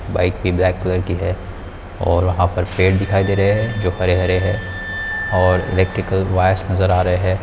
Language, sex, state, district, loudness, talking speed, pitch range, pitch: Hindi, male, Bihar, Kishanganj, -18 LUFS, 200 wpm, 90-95 Hz, 95 Hz